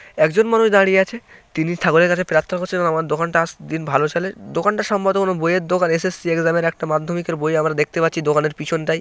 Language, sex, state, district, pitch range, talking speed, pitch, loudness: Bengali, male, West Bengal, North 24 Parganas, 160-185 Hz, 220 wpm, 170 Hz, -18 LUFS